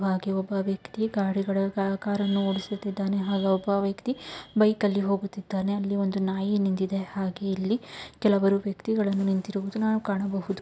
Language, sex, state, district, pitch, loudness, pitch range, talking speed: Kannada, female, Karnataka, Mysore, 195 Hz, -27 LUFS, 195-205 Hz, 130 wpm